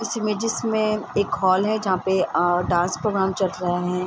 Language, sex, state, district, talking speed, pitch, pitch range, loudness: Hindi, female, Bihar, Sitamarhi, 205 wpm, 190 Hz, 180-215 Hz, -22 LUFS